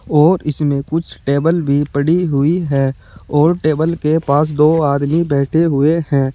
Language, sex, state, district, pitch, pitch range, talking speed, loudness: Hindi, male, Uttar Pradesh, Saharanpur, 150 Hz, 140-160 Hz, 160 wpm, -15 LUFS